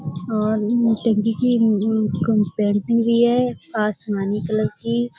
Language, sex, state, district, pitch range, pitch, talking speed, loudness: Hindi, female, Uttar Pradesh, Budaun, 210-230 Hz, 220 Hz, 140 wpm, -20 LUFS